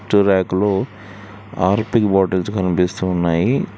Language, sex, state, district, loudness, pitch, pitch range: Telugu, male, Telangana, Hyderabad, -18 LUFS, 95 Hz, 95-105 Hz